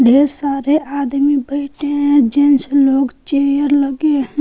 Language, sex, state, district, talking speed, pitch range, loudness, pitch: Hindi, female, Jharkhand, Palamu, 135 wpm, 275-285 Hz, -14 LUFS, 280 Hz